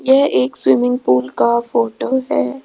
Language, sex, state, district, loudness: Hindi, female, Rajasthan, Jaipur, -16 LUFS